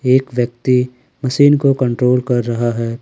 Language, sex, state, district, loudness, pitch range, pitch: Hindi, male, Jharkhand, Ranchi, -15 LUFS, 120-130 Hz, 125 Hz